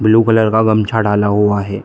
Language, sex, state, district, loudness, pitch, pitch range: Hindi, male, Bihar, Muzaffarpur, -13 LUFS, 110 Hz, 105-110 Hz